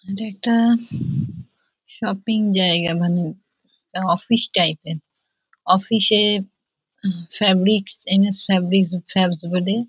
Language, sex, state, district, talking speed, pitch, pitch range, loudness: Bengali, female, West Bengal, Jhargram, 90 wpm, 195 Hz, 180-215 Hz, -19 LUFS